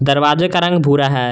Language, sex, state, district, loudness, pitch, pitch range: Hindi, male, Jharkhand, Garhwa, -14 LUFS, 145 Hz, 140-175 Hz